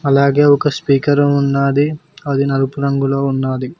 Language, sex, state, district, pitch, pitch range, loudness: Telugu, male, Telangana, Mahabubabad, 140 Hz, 135-145 Hz, -15 LUFS